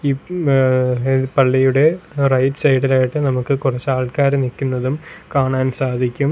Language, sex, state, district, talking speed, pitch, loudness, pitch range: Malayalam, male, Kerala, Kollam, 115 wpm, 135 Hz, -17 LUFS, 130-140 Hz